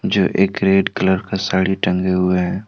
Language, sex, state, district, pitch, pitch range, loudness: Hindi, male, Jharkhand, Deoghar, 95 Hz, 90-95 Hz, -17 LUFS